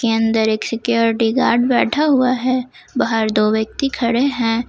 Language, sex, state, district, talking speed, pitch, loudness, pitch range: Hindi, female, Jharkhand, Ranchi, 155 wpm, 235 Hz, -17 LUFS, 225-255 Hz